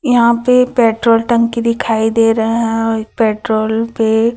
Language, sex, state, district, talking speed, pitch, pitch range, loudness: Hindi, female, Chhattisgarh, Raipur, 135 wpm, 230 Hz, 225-235 Hz, -13 LUFS